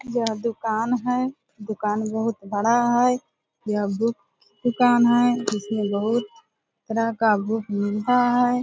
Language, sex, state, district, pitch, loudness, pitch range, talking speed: Hindi, female, Bihar, Purnia, 230 Hz, -23 LUFS, 210-245 Hz, 130 wpm